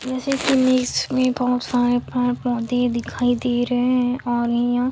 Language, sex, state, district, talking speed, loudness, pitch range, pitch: Hindi, female, Chhattisgarh, Sukma, 120 wpm, -20 LUFS, 245-255 Hz, 245 Hz